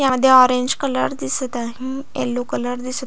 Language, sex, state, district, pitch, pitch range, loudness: Marathi, female, Maharashtra, Aurangabad, 255 Hz, 245-260 Hz, -19 LUFS